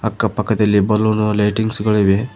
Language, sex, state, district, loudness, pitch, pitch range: Kannada, male, Karnataka, Koppal, -16 LUFS, 105 Hz, 105-110 Hz